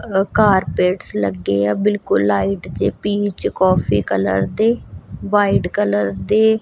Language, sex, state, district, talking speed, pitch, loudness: Punjabi, female, Punjab, Kapurthala, 120 wpm, 180 Hz, -17 LUFS